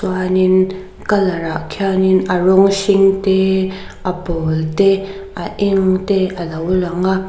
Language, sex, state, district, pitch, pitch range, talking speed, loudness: Mizo, female, Mizoram, Aizawl, 190 Hz, 180-195 Hz, 140 wpm, -15 LUFS